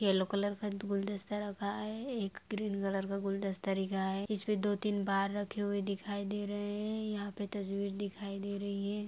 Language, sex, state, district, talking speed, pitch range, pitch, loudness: Hindi, female, Jharkhand, Sahebganj, 200 wpm, 200-205 Hz, 200 Hz, -36 LUFS